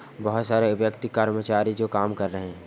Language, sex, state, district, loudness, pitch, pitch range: Hindi, male, Bihar, Jamui, -25 LUFS, 110 Hz, 100-110 Hz